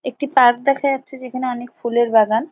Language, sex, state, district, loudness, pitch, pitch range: Bengali, female, West Bengal, North 24 Parganas, -18 LUFS, 255 Hz, 235-270 Hz